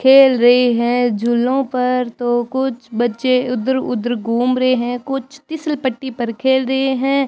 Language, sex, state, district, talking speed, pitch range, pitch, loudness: Hindi, male, Rajasthan, Bikaner, 165 wpm, 240-265 Hz, 255 Hz, -17 LUFS